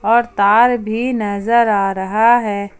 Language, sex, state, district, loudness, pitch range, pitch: Hindi, female, Jharkhand, Ranchi, -15 LUFS, 200-235 Hz, 215 Hz